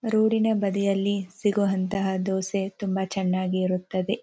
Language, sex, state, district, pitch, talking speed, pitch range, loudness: Kannada, female, Karnataka, Dharwad, 195 Hz, 115 wpm, 190-205 Hz, -25 LUFS